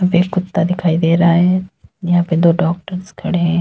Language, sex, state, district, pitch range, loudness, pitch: Hindi, female, Uttar Pradesh, Lalitpur, 170-180 Hz, -15 LUFS, 175 Hz